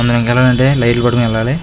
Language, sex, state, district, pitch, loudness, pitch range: Telugu, male, Andhra Pradesh, Chittoor, 120 Hz, -12 LUFS, 120-125 Hz